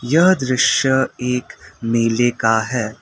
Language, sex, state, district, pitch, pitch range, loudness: Hindi, male, Assam, Kamrup Metropolitan, 120 Hz, 115-130 Hz, -17 LUFS